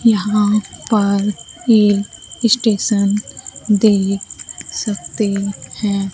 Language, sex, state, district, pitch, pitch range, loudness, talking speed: Hindi, female, Bihar, Kaimur, 205 Hz, 200-215 Hz, -17 LUFS, 70 wpm